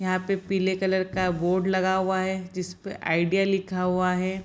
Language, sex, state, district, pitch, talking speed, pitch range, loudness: Hindi, female, Bihar, Sitamarhi, 185 Hz, 205 wpm, 185-190 Hz, -25 LUFS